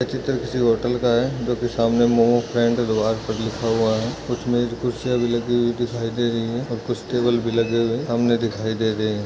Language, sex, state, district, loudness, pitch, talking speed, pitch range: Hindi, male, Chhattisgarh, Jashpur, -21 LUFS, 120 Hz, 240 wpm, 115-120 Hz